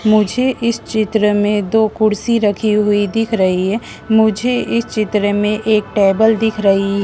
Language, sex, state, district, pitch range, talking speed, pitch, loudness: Hindi, female, Madhya Pradesh, Dhar, 205-220 Hz, 160 wpm, 215 Hz, -15 LUFS